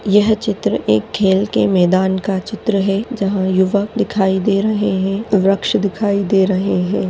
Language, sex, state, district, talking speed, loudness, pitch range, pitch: Hindi, female, Maharashtra, Chandrapur, 170 wpm, -16 LUFS, 190-210 Hz, 195 Hz